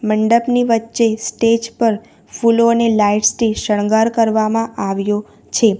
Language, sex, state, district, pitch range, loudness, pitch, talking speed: Gujarati, female, Gujarat, Valsad, 215-230 Hz, -16 LUFS, 225 Hz, 125 wpm